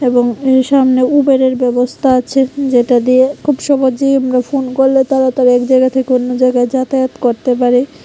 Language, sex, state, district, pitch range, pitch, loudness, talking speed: Bengali, female, Tripura, West Tripura, 250-270 Hz, 260 Hz, -12 LUFS, 165 wpm